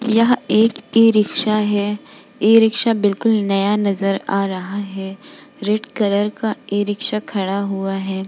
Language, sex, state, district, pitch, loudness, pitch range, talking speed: Hindi, female, Bihar, Vaishali, 210 Hz, -17 LUFS, 195-225 Hz, 130 wpm